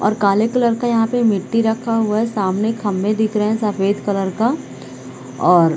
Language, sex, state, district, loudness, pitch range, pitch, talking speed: Hindi, female, Chhattisgarh, Bilaspur, -18 LUFS, 195-225 Hz, 210 Hz, 195 wpm